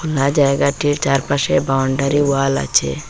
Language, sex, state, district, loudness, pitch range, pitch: Bengali, female, Assam, Hailakandi, -16 LUFS, 135-140 Hz, 140 Hz